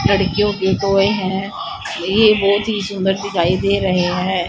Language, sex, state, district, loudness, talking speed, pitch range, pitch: Hindi, female, Haryana, Charkhi Dadri, -17 LUFS, 160 wpm, 190-205 Hz, 195 Hz